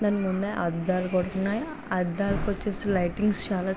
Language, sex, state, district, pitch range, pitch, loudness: Telugu, female, Andhra Pradesh, Visakhapatnam, 185-205 Hz, 195 Hz, -27 LUFS